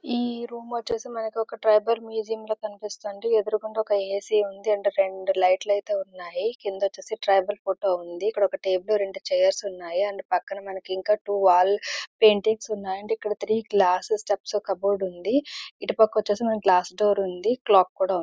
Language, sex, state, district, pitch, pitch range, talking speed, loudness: Telugu, female, Andhra Pradesh, Visakhapatnam, 205 Hz, 195-220 Hz, 175 wpm, -25 LUFS